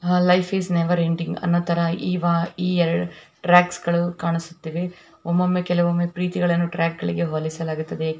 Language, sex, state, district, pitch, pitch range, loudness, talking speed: Kannada, female, Karnataka, Raichur, 175 Hz, 170-180 Hz, -22 LUFS, 130 wpm